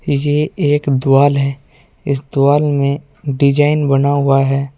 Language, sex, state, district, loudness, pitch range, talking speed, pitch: Hindi, male, Uttar Pradesh, Saharanpur, -14 LUFS, 135-145 Hz, 140 wpm, 140 Hz